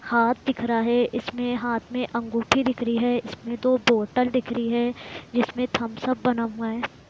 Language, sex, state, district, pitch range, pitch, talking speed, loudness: Hindi, female, Bihar, Muzaffarpur, 230-250 Hz, 240 Hz, 195 wpm, -24 LUFS